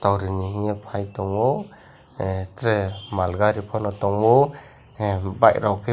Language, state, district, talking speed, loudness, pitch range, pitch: Kokborok, Tripura, West Tripura, 130 wpm, -22 LUFS, 95-110 Hz, 100 Hz